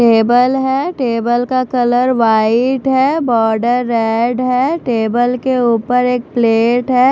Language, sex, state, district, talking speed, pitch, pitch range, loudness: Hindi, female, Bihar, Patna, 135 wpm, 245 Hz, 230-255 Hz, -14 LUFS